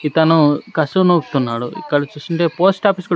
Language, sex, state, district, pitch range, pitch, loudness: Telugu, male, Andhra Pradesh, Sri Satya Sai, 145-180 Hz, 160 Hz, -16 LUFS